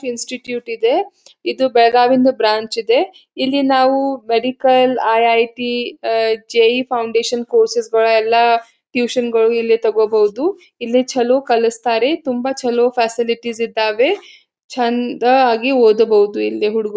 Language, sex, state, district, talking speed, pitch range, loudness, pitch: Kannada, female, Karnataka, Belgaum, 115 wpm, 230-260 Hz, -15 LUFS, 240 Hz